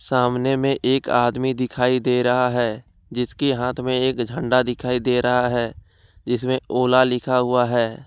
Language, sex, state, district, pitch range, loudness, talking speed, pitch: Hindi, male, Jharkhand, Ranchi, 120-130 Hz, -20 LUFS, 165 wpm, 125 Hz